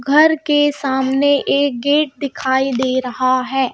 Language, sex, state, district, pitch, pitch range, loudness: Hindi, female, Madhya Pradesh, Bhopal, 270 Hz, 260-285 Hz, -16 LUFS